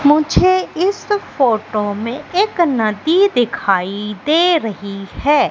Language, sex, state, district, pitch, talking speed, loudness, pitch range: Hindi, female, Madhya Pradesh, Katni, 285 Hz, 110 wpm, -16 LUFS, 210-350 Hz